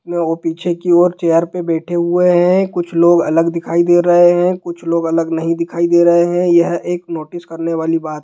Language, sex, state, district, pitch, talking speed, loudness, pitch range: Hindi, male, Bihar, Jahanabad, 170 Hz, 225 wpm, -14 LUFS, 165-175 Hz